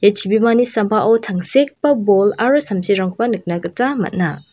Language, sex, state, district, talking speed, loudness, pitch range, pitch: Garo, female, Meghalaya, West Garo Hills, 130 wpm, -16 LUFS, 190-240 Hz, 215 Hz